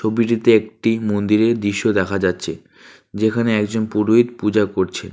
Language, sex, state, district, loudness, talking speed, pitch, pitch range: Bengali, male, West Bengal, Alipurduar, -18 LUFS, 130 wpm, 110 Hz, 105-115 Hz